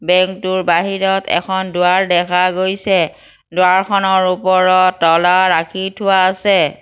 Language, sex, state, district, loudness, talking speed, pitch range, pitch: Assamese, female, Assam, Kamrup Metropolitan, -14 LUFS, 115 wpm, 180-190 Hz, 185 Hz